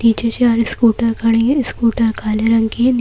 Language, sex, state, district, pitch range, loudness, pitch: Hindi, female, Madhya Pradesh, Bhopal, 225-235 Hz, -15 LUFS, 230 Hz